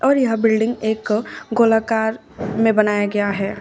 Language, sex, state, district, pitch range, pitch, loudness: Hindi, female, Uttar Pradesh, Shamli, 210-225 Hz, 220 Hz, -18 LUFS